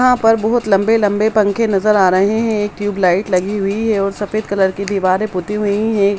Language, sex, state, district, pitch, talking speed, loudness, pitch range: Hindi, female, Bihar, Samastipur, 205 Hz, 225 wpm, -15 LUFS, 195-215 Hz